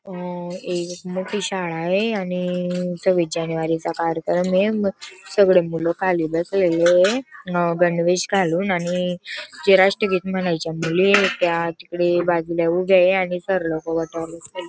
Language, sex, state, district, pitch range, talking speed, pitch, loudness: Marathi, female, Maharashtra, Dhule, 170-190 Hz, 110 wpm, 180 Hz, -20 LUFS